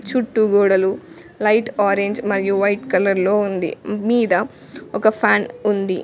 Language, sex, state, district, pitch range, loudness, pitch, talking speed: Telugu, female, Telangana, Mahabubabad, 195-215 Hz, -18 LUFS, 205 Hz, 130 wpm